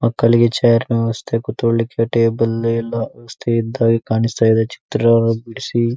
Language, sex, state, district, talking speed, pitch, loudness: Kannada, male, Karnataka, Dakshina Kannada, 150 wpm, 115 Hz, -17 LUFS